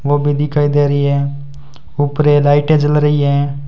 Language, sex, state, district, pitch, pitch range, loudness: Hindi, male, Rajasthan, Bikaner, 145 Hz, 140-145 Hz, -14 LUFS